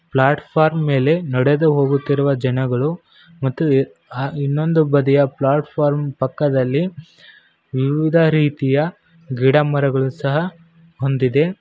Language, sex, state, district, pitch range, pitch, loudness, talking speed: Kannada, male, Karnataka, Koppal, 135-155 Hz, 145 Hz, -18 LUFS, 75 wpm